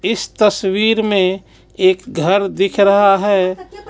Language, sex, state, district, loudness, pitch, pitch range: Hindi, male, Jharkhand, Ranchi, -15 LUFS, 200 Hz, 190-210 Hz